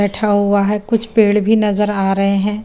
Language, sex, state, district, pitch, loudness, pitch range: Hindi, female, Chandigarh, Chandigarh, 210 Hz, -15 LUFS, 200-210 Hz